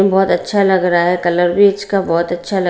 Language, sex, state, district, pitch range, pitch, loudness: Hindi, female, Bihar, Patna, 175-195 Hz, 185 Hz, -14 LUFS